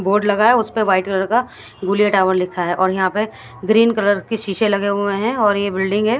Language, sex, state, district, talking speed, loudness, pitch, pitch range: Hindi, female, Haryana, Jhajjar, 240 wpm, -17 LUFS, 205 Hz, 190-220 Hz